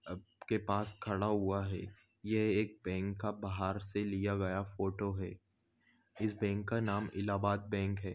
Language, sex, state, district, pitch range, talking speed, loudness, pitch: Hindi, male, Goa, North and South Goa, 95-105 Hz, 170 wpm, -37 LUFS, 100 Hz